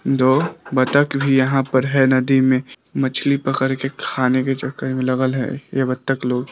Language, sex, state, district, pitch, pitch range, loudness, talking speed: Hindi, male, Bihar, Vaishali, 130 Hz, 130-135 Hz, -18 LUFS, 185 wpm